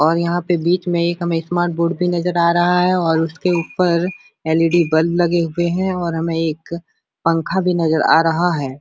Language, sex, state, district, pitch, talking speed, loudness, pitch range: Hindi, male, Bihar, Supaul, 170 Hz, 210 wpm, -17 LUFS, 165-175 Hz